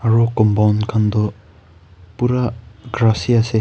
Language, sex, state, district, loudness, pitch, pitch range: Nagamese, male, Nagaland, Kohima, -17 LUFS, 110 Hz, 105-115 Hz